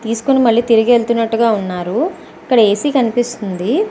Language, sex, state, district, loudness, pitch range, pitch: Telugu, female, Andhra Pradesh, Visakhapatnam, -15 LUFS, 220-245 Hz, 230 Hz